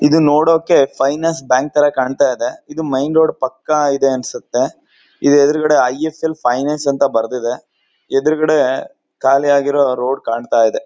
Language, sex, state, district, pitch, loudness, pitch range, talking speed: Kannada, male, Karnataka, Mysore, 140 Hz, -15 LUFS, 130-155 Hz, 135 wpm